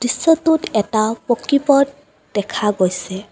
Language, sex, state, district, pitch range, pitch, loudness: Assamese, female, Assam, Kamrup Metropolitan, 200-280 Hz, 225 Hz, -17 LUFS